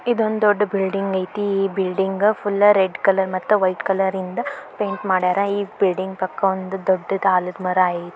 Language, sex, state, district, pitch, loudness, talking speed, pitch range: Kannada, female, Karnataka, Belgaum, 195 Hz, -20 LUFS, 160 wpm, 185-205 Hz